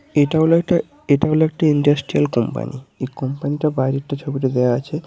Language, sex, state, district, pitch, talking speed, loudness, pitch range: Bengali, male, West Bengal, Purulia, 145 Hz, 165 wpm, -19 LUFS, 135-155 Hz